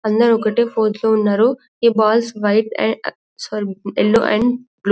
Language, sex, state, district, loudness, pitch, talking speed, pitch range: Telugu, female, Telangana, Karimnagar, -17 LUFS, 220 Hz, 170 wpm, 210-235 Hz